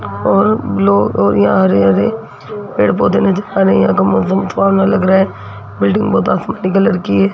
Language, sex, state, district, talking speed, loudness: Hindi, female, Rajasthan, Jaipur, 190 wpm, -13 LUFS